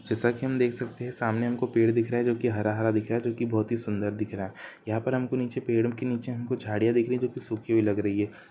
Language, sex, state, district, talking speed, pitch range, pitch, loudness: Hindi, male, Chhattisgarh, Bastar, 325 wpm, 110-125 Hz, 115 Hz, -28 LUFS